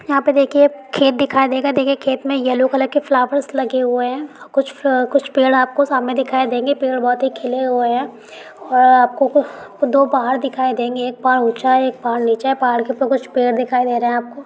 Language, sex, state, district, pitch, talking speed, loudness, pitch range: Hindi, female, Bihar, Bhagalpur, 260 Hz, 220 wpm, -16 LUFS, 250-275 Hz